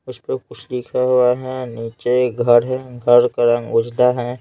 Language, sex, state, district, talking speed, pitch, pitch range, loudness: Hindi, male, Bihar, Patna, 190 wpm, 125 Hz, 120-125 Hz, -18 LUFS